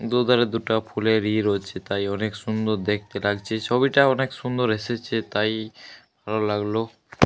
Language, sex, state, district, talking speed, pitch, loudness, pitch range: Bengali, male, Jharkhand, Jamtara, 150 wpm, 110 Hz, -23 LUFS, 105-120 Hz